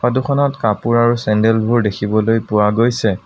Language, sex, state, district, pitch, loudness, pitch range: Assamese, male, Assam, Sonitpur, 115 Hz, -15 LUFS, 105-120 Hz